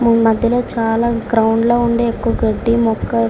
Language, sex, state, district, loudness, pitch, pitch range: Telugu, female, Andhra Pradesh, Srikakulam, -15 LUFS, 230 Hz, 225-235 Hz